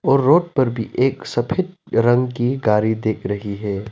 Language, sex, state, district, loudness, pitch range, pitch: Hindi, male, Arunachal Pradesh, Lower Dibang Valley, -19 LUFS, 105-135 Hz, 120 Hz